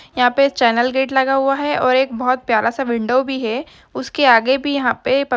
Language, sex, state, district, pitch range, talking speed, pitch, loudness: Hindi, female, Bihar, Jahanabad, 240-270 Hz, 245 wpm, 260 Hz, -17 LUFS